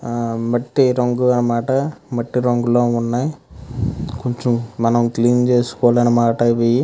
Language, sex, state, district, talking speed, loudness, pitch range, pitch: Telugu, male, Andhra Pradesh, Krishna, 125 wpm, -18 LUFS, 115-125 Hz, 120 Hz